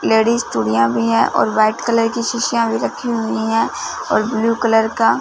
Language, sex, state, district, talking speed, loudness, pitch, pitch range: Hindi, female, Punjab, Fazilka, 195 wpm, -17 LUFS, 225 Hz, 215-230 Hz